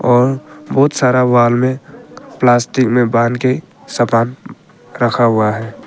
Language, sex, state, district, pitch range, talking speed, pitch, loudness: Hindi, male, Arunachal Pradesh, Papum Pare, 120-130 Hz, 135 wpm, 120 Hz, -14 LUFS